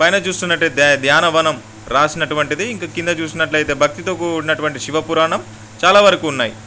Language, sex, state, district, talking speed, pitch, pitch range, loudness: Telugu, male, Andhra Pradesh, Guntur, 125 wpm, 155 Hz, 145-170 Hz, -15 LUFS